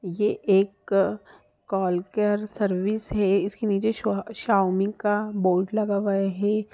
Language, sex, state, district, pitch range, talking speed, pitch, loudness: Hindi, female, Bihar, Sitamarhi, 195-210 Hz, 125 wpm, 200 Hz, -24 LUFS